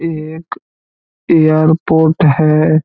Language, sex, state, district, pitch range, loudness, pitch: Hindi, male, Bihar, East Champaran, 130-160 Hz, -11 LUFS, 155 Hz